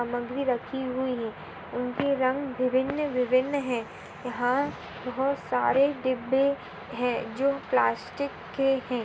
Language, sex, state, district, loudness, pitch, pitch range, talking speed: Hindi, female, Maharashtra, Sindhudurg, -28 LUFS, 255 Hz, 245-275 Hz, 115 wpm